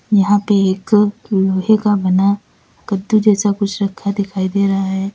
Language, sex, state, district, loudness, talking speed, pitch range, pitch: Hindi, female, Uttar Pradesh, Lalitpur, -16 LUFS, 165 wpm, 195-205 Hz, 200 Hz